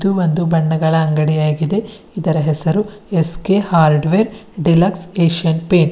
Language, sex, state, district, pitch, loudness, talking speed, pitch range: Kannada, female, Karnataka, Bidar, 170 Hz, -16 LUFS, 110 wpm, 160-195 Hz